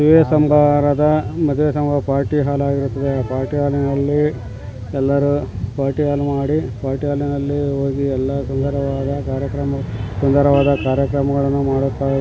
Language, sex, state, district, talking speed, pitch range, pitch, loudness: Kannada, male, Karnataka, Mysore, 125 wpm, 135-145 Hz, 140 Hz, -18 LUFS